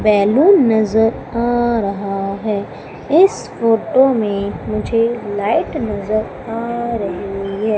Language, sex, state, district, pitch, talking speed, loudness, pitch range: Hindi, female, Madhya Pradesh, Umaria, 220 Hz, 110 wpm, -17 LUFS, 205-235 Hz